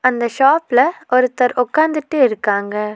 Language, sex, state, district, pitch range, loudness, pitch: Tamil, female, Tamil Nadu, Nilgiris, 235-290 Hz, -16 LUFS, 255 Hz